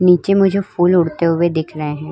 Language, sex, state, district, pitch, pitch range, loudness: Hindi, female, Uttar Pradesh, Hamirpur, 170 Hz, 160-180 Hz, -16 LUFS